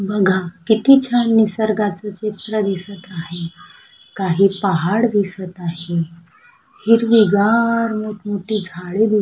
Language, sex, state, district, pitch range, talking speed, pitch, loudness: Marathi, female, Maharashtra, Sindhudurg, 185-220 Hz, 105 wpm, 205 Hz, -18 LUFS